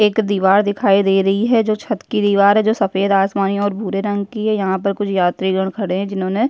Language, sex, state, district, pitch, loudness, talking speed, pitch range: Hindi, female, Uttarakhand, Tehri Garhwal, 200 Hz, -17 LUFS, 250 wpm, 195-210 Hz